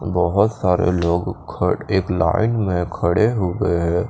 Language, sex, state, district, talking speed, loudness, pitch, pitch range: Hindi, male, Chandigarh, Chandigarh, 160 wpm, -19 LUFS, 90 Hz, 85-100 Hz